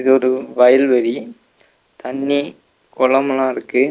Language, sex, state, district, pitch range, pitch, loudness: Tamil, male, Tamil Nadu, Nilgiris, 130-135 Hz, 130 Hz, -16 LUFS